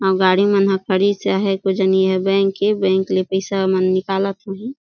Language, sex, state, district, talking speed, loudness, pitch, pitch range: Surgujia, female, Chhattisgarh, Sarguja, 210 wpm, -17 LUFS, 195 Hz, 190-195 Hz